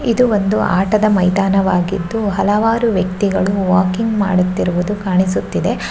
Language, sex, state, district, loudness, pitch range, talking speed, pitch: Kannada, female, Karnataka, Shimoga, -15 LUFS, 185-215 Hz, 100 wpm, 195 Hz